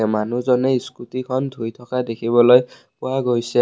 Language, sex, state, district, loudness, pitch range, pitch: Assamese, male, Assam, Kamrup Metropolitan, -19 LUFS, 120-130 Hz, 125 Hz